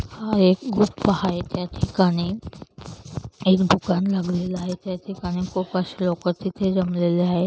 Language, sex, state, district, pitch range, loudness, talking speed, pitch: Marathi, female, Maharashtra, Chandrapur, 180-190 Hz, -23 LUFS, 130 wpm, 185 Hz